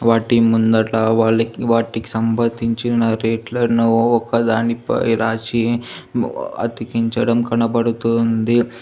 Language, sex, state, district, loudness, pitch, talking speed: Telugu, female, Telangana, Hyderabad, -18 LUFS, 115 Hz, 75 wpm